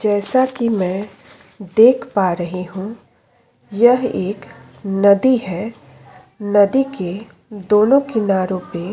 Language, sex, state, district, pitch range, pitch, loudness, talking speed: Hindi, female, Uttar Pradesh, Jyotiba Phule Nagar, 190-230 Hz, 205 Hz, -17 LUFS, 115 wpm